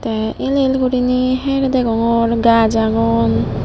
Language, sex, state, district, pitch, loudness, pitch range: Chakma, female, Tripura, Unakoti, 230 Hz, -15 LUFS, 220-255 Hz